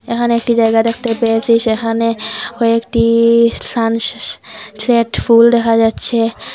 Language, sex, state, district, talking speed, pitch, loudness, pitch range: Bengali, female, Assam, Hailakandi, 110 wpm, 230 Hz, -13 LUFS, 225-235 Hz